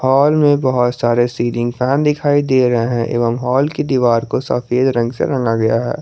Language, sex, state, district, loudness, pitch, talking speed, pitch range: Hindi, male, Jharkhand, Garhwa, -15 LUFS, 125 Hz, 210 wpm, 120-135 Hz